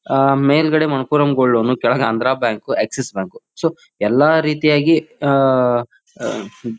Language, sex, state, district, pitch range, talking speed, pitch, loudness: Kannada, male, Karnataka, Bijapur, 125-150 Hz, 150 wpm, 135 Hz, -16 LUFS